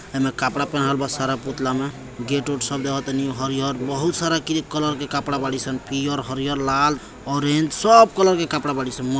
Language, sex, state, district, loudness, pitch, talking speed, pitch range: Maithili, male, Bihar, Samastipur, -21 LUFS, 140 Hz, 185 wpm, 135-145 Hz